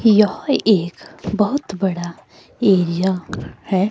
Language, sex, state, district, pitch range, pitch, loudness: Hindi, female, Himachal Pradesh, Shimla, 180-210 Hz, 190 Hz, -18 LUFS